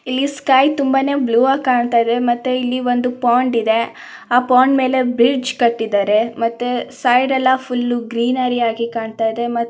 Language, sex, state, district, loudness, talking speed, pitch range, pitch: Kannada, female, Karnataka, Mysore, -16 LUFS, 135 wpm, 235-255 Hz, 245 Hz